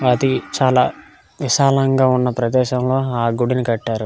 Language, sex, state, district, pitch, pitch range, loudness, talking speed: Telugu, male, Telangana, Karimnagar, 125 Hz, 120-130 Hz, -17 LUFS, 120 wpm